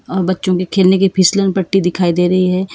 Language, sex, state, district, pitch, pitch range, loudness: Hindi, female, Karnataka, Bangalore, 185 Hz, 180-190 Hz, -14 LUFS